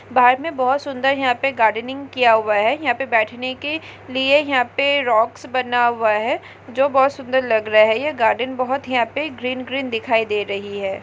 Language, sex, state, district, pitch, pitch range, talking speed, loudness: Hindi, female, Chhattisgarh, Raigarh, 255 Hz, 225-270 Hz, 205 wpm, -19 LUFS